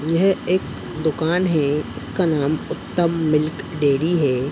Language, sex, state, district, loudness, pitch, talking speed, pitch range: Hindi, male, Uttar Pradesh, Muzaffarnagar, -21 LUFS, 155 Hz, 135 wpm, 145-170 Hz